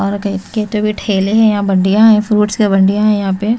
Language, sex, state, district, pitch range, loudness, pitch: Hindi, female, Chhattisgarh, Raipur, 195-215 Hz, -13 LUFS, 210 Hz